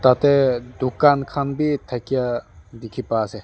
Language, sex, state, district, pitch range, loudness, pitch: Nagamese, male, Nagaland, Dimapur, 115-140 Hz, -20 LUFS, 125 Hz